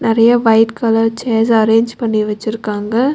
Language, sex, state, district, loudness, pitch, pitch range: Tamil, female, Tamil Nadu, Nilgiris, -14 LUFS, 225 Hz, 220-230 Hz